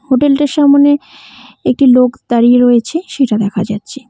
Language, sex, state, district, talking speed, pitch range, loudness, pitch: Bengali, female, West Bengal, Cooch Behar, 145 wpm, 240-280 Hz, -11 LUFS, 265 Hz